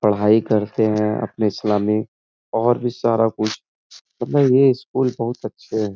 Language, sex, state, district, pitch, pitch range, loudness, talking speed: Hindi, male, Uttar Pradesh, Etah, 110 Hz, 105-120 Hz, -19 LUFS, 150 wpm